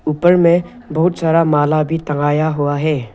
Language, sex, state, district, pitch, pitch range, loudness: Hindi, male, Arunachal Pradesh, Lower Dibang Valley, 155 Hz, 145-165 Hz, -15 LUFS